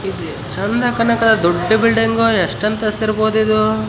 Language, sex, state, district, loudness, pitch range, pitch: Kannada, male, Karnataka, Raichur, -15 LUFS, 205-225 Hz, 220 Hz